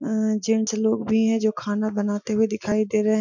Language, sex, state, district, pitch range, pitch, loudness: Hindi, female, Jharkhand, Sahebganj, 215-220 Hz, 215 Hz, -23 LUFS